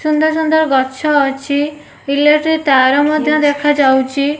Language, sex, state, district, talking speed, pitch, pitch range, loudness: Odia, female, Odisha, Nuapada, 125 wpm, 295 Hz, 275-305 Hz, -13 LUFS